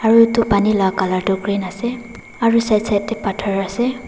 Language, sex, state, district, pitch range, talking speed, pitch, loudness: Nagamese, female, Nagaland, Dimapur, 195-230 Hz, 205 wpm, 210 Hz, -18 LUFS